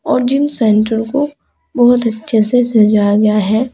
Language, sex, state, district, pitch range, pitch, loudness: Hindi, female, Uttar Pradesh, Saharanpur, 215-250 Hz, 225 Hz, -13 LUFS